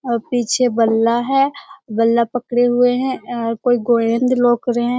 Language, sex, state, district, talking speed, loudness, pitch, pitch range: Hindi, male, Bihar, Jamui, 155 wpm, -17 LUFS, 245 Hz, 235-250 Hz